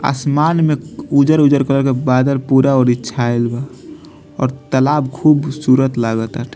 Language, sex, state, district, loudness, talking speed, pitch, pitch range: Bhojpuri, male, Bihar, Muzaffarpur, -15 LUFS, 135 wpm, 135 Hz, 125-145 Hz